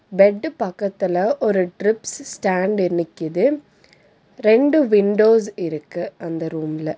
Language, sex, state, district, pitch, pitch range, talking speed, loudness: Tamil, female, Tamil Nadu, Nilgiris, 195 Hz, 175-220 Hz, 105 wpm, -19 LUFS